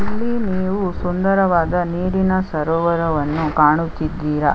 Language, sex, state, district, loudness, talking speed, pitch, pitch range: Kannada, female, Karnataka, Chamarajanagar, -19 LUFS, 90 wpm, 170 Hz, 155-190 Hz